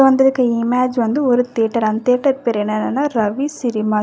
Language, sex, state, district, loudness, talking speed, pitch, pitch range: Tamil, female, Karnataka, Bangalore, -17 LUFS, 180 wpm, 245 Hz, 225-265 Hz